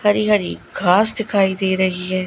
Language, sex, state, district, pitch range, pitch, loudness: Hindi, female, Gujarat, Gandhinagar, 185-210 Hz, 190 Hz, -17 LUFS